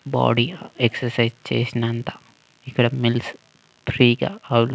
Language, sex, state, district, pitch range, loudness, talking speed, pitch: Telugu, male, Telangana, Karimnagar, 120-125 Hz, -21 LUFS, 100 wpm, 120 Hz